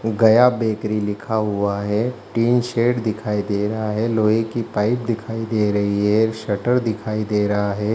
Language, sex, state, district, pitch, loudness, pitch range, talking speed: Hindi, male, Bihar, Jahanabad, 110 Hz, -20 LUFS, 105-115 Hz, 180 wpm